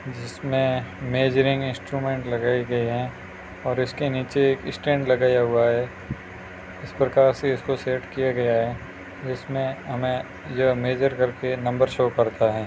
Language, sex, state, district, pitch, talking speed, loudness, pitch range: Hindi, male, Rajasthan, Churu, 125 Hz, 145 wpm, -23 LUFS, 120-135 Hz